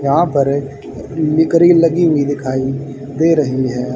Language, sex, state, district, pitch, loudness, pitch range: Hindi, male, Haryana, Rohtak, 140 Hz, -14 LUFS, 135-160 Hz